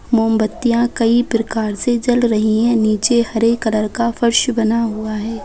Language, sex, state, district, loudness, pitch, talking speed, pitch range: Bajjika, female, Bihar, Vaishali, -16 LUFS, 230 Hz, 165 wpm, 220-235 Hz